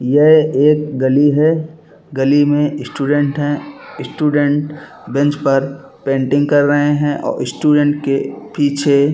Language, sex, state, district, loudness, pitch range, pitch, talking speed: Hindi, male, Chhattisgarh, Bilaspur, -15 LUFS, 140-150 Hz, 145 Hz, 125 wpm